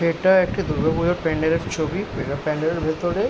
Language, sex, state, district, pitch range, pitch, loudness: Bengali, male, West Bengal, Jhargram, 155-175 Hz, 160 Hz, -22 LUFS